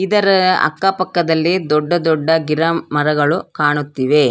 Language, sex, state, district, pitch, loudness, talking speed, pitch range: Kannada, female, Karnataka, Bangalore, 160 Hz, -15 LUFS, 95 wpm, 150-180 Hz